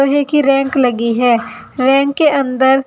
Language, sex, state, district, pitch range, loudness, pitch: Hindi, female, Uttar Pradesh, Saharanpur, 255-280 Hz, -13 LUFS, 270 Hz